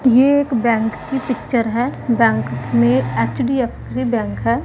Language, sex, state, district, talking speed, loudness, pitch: Hindi, female, Punjab, Pathankot, 140 wpm, -18 LUFS, 235 Hz